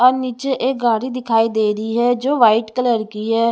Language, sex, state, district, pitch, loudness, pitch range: Hindi, female, Chhattisgarh, Raipur, 235 Hz, -17 LUFS, 225-255 Hz